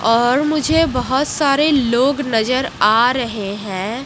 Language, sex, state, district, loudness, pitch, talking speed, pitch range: Hindi, female, Odisha, Malkangiri, -16 LUFS, 255 Hz, 135 wpm, 230-280 Hz